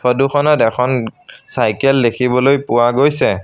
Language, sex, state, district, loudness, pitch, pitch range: Assamese, male, Assam, Sonitpur, -14 LUFS, 125 Hz, 120-135 Hz